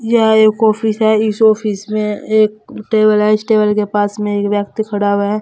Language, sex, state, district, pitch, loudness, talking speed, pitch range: Hindi, female, Uttar Pradesh, Saharanpur, 215 Hz, -14 LUFS, 220 wpm, 210-220 Hz